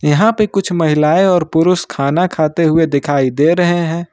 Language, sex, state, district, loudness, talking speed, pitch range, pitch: Hindi, male, Jharkhand, Ranchi, -13 LUFS, 190 wpm, 150-180 Hz, 165 Hz